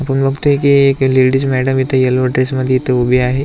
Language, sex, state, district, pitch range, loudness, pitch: Marathi, male, Maharashtra, Aurangabad, 130-135 Hz, -13 LUFS, 130 Hz